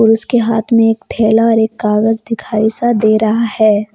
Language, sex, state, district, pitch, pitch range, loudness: Hindi, female, Jharkhand, Deoghar, 220 Hz, 215-230 Hz, -13 LUFS